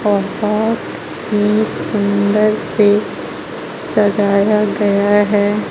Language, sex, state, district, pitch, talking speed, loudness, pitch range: Hindi, female, Jharkhand, Ranchi, 210 Hz, 75 wpm, -15 LUFS, 205-210 Hz